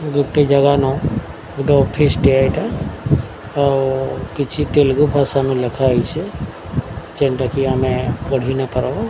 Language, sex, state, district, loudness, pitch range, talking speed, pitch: Odia, male, Odisha, Sambalpur, -17 LUFS, 125-140 Hz, 130 wpm, 135 Hz